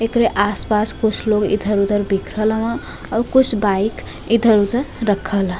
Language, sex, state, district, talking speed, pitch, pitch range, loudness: Bhojpuri, female, Uttar Pradesh, Varanasi, 140 wpm, 215 Hz, 205-230 Hz, -17 LUFS